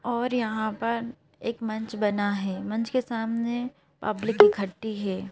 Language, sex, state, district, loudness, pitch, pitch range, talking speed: Hindi, female, Madhya Pradesh, Bhopal, -27 LUFS, 220 Hz, 210-235 Hz, 145 wpm